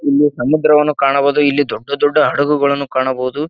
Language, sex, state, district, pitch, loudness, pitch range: Kannada, male, Karnataka, Bijapur, 145 Hz, -14 LUFS, 140-150 Hz